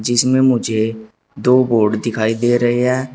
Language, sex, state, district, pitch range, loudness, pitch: Hindi, male, Uttar Pradesh, Shamli, 110-125 Hz, -16 LUFS, 120 Hz